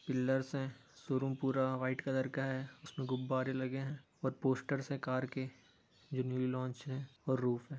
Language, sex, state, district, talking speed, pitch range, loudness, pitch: Hindi, male, Bihar, Bhagalpur, 175 wpm, 130-135 Hz, -38 LUFS, 130 Hz